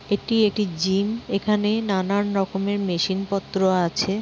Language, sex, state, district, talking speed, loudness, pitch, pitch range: Bengali, female, West Bengal, Jhargram, 130 wpm, -23 LUFS, 200 Hz, 190-210 Hz